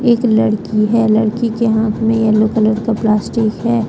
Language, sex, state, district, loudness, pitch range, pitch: Hindi, female, Jharkhand, Deoghar, -14 LUFS, 215-230 Hz, 220 Hz